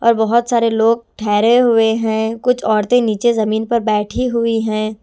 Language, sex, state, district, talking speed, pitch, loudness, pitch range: Hindi, female, Punjab, Kapurthala, 180 wpm, 225 Hz, -15 LUFS, 220-235 Hz